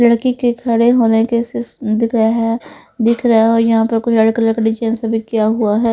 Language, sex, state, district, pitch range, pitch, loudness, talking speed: Hindi, female, Punjab, Fazilka, 225-235 Hz, 230 Hz, -15 LUFS, 225 wpm